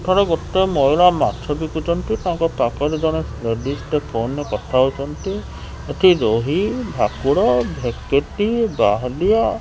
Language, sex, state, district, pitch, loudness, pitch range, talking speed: Odia, male, Odisha, Khordha, 160 Hz, -19 LUFS, 135-185 Hz, 125 wpm